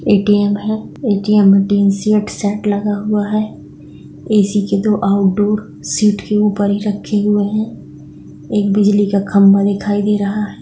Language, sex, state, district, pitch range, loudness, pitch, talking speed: Hindi, male, West Bengal, Purulia, 200-210 Hz, -15 LUFS, 205 Hz, 160 wpm